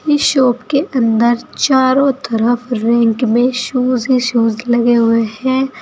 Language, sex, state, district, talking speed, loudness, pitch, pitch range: Hindi, female, Uttar Pradesh, Saharanpur, 145 wpm, -14 LUFS, 245 Hz, 235-260 Hz